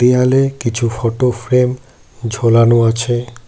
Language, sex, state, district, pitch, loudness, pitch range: Bengali, male, West Bengal, Cooch Behar, 120 Hz, -14 LUFS, 115-125 Hz